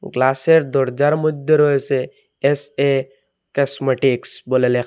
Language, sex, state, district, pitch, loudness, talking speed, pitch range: Bengali, male, Assam, Hailakandi, 140 Hz, -18 LUFS, 100 wpm, 130-145 Hz